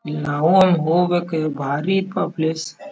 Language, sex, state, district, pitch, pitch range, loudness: Kannada, male, Karnataka, Dharwad, 165 Hz, 155-190 Hz, -19 LUFS